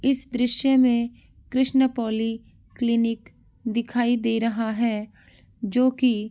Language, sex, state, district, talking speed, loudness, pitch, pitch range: Angika, male, Bihar, Madhepura, 125 wpm, -23 LUFS, 235 Hz, 230-250 Hz